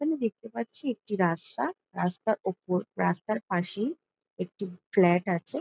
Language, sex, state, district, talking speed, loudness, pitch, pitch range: Bengali, female, West Bengal, Jalpaiguri, 140 wpm, -30 LUFS, 200 Hz, 180-230 Hz